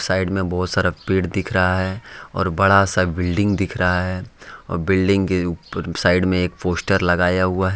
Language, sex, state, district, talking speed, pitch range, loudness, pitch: Hindi, male, Jharkhand, Ranchi, 200 wpm, 90-95 Hz, -19 LUFS, 95 Hz